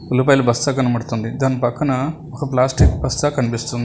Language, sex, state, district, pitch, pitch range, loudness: Telugu, male, Telangana, Hyderabad, 130 Hz, 120-140 Hz, -18 LUFS